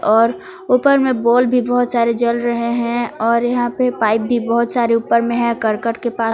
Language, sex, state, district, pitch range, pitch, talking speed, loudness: Hindi, female, Jharkhand, Palamu, 230-245 Hz, 235 Hz, 220 wpm, -16 LUFS